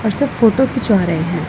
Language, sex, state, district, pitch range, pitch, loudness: Hindi, female, Punjab, Pathankot, 175-255 Hz, 220 Hz, -15 LUFS